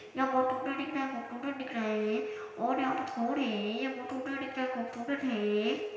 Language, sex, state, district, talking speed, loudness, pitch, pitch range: Hindi, male, Chhattisgarh, Balrampur, 130 wpm, -33 LUFS, 260 Hz, 230-270 Hz